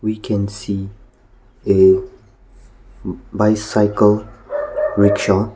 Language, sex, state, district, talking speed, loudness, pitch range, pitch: English, male, Nagaland, Kohima, 65 wpm, -17 LUFS, 100-120 Hz, 105 Hz